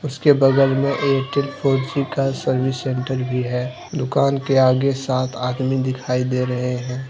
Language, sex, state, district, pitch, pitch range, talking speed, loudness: Hindi, male, Jharkhand, Deoghar, 130 Hz, 125-140 Hz, 170 wpm, -20 LUFS